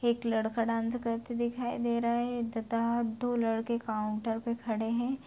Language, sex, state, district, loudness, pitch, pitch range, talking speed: Hindi, female, Bihar, Begusarai, -32 LUFS, 235 Hz, 225-235 Hz, 170 wpm